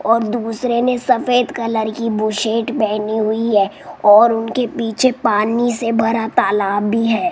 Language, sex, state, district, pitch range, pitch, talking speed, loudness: Hindi, female, Rajasthan, Jaipur, 220-235 Hz, 225 Hz, 155 wpm, -16 LUFS